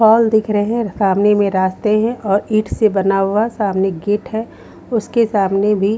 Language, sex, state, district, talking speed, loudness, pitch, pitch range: Hindi, female, Haryana, Rohtak, 190 wpm, -16 LUFS, 210 Hz, 195-220 Hz